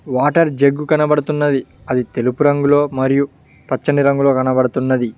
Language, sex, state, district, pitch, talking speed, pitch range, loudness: Telugu, male, Telangana, Mahabubabad, 140 Hz, 115 wpm, 130-145 Hz, -16 LUFS